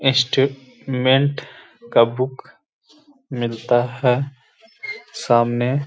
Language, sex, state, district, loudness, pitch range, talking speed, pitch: Hindi, male, Bihar, Gaya, -20 LUFS, 125-140 Hz, 80 wpm, 130 Hz